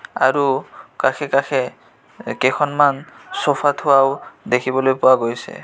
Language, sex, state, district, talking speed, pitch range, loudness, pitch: Assamese, male, Assam, Kamrup Metropolitan, 105 wpm, 130-145 Hz, -18 LUFS, 135 Hz